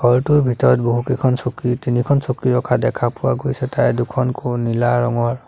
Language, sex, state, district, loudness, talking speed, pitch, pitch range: Assamese, male, Assam, Sonitpur, -18 LUFS, 165 wpm, 125 Hz, 120-130 Hz